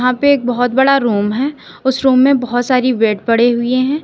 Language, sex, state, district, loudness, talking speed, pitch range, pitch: Hindi, female, Uttar Pradesh, Lalitpur, -14 LUFS, 235 wpm, 240-270 Hz, 255 Hz